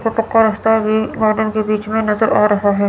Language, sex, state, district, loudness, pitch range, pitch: Hindi, female, Chandigarh, Chandigarh, -15 LUFS, 215-220 Hz, 220 Hz